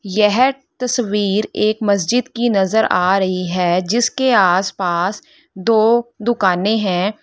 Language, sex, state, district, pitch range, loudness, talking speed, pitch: Hindi, female, Uttar Pradesh, Lalitpur, 190-240 Hz, -16 LUFS, 115 wpm, 210 Hz